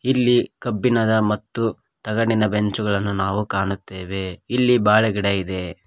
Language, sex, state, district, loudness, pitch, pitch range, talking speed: Kannada, male, Karnataka, Koppal, -21 LUFS, 105 Hz, 95-115 Hz, 110 wpm